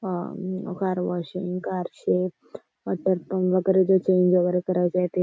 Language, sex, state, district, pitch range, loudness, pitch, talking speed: Marathi, female, Maharashtra, Nagpur, 180-185 Hz, -24 LUFS, 185 Hz, 125 wpm